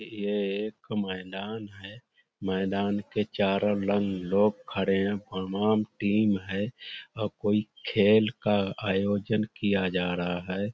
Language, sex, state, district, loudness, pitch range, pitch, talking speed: Hindi, male, Uttar Pradesh, Budaun, -28 LUFS, 95-105 Hz, 100 Hz, 125 wpm